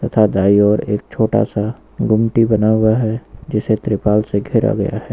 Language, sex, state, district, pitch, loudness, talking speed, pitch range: Hindi, male, Uttar Pradesh, Lucknow, 110 Hz, -16 LUFS, 185 wpm, 105-115 Hz